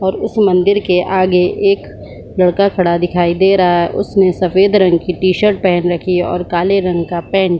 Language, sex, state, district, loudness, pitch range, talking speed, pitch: Hindi, female, Bihar, Supaul, -13 LUFS, 175-195 Hz, 205 wpm, 185 Hz